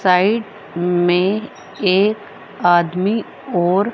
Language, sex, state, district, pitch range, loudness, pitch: Hindi, female, Haryana, Rohtak, 175-210 Hz, -17 LUFS, 195 Hz